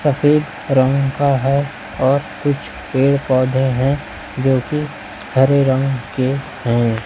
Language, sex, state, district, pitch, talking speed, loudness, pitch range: Hindi, male, Chhattisgarh, Raipur, 135 Hz, 120 wpm, -17 LUFS, 130-140 Hz